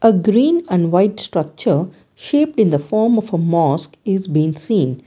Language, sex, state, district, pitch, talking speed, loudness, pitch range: English, female, Karnataka, Bangalore, 195 Hz, 165 wpm, -17 LUFS, 165-220 Hz